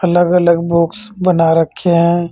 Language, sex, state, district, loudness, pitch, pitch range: Hindi, male, Uttar Pradesh, Saharanpur, -13 LUFS, 170 Hz, 170-180 Hz